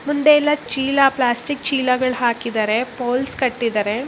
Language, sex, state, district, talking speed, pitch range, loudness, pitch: Kannada, female, Karnataka, Raichur, 115 wpm, 240-275 Hz, -18 LUFS, 255 Hz